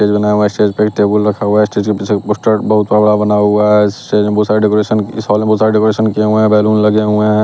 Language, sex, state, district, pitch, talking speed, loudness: Hindi, male, Bihar, West Champaran, 105 Hz, 95 wpm, -12 LUFS